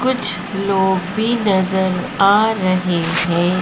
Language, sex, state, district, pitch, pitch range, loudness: Hindi, female, Madhya Pradesh, Dhar, 190 Hz, 185-210 Hz, -17 LUFS